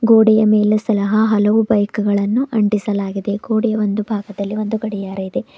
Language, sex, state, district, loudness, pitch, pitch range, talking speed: Kannada, female, Karnataka, Bidar, -17 LUFS, 215 Hz, 205-220 Hz, 140 wpm